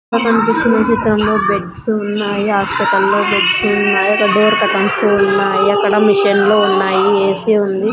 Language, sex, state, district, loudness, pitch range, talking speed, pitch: Telugu, female, Andhra Pradesh, Sri Satya Sai, -13 LUFS, 200-215 Hz, 145 wpm, 205 Hz